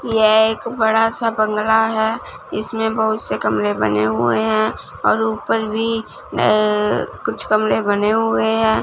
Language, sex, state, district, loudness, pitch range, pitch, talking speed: Hindi, female, Punjab, Fazilka, -18 LUFS, 155-220 Hz, 215 Hz, 150 wpm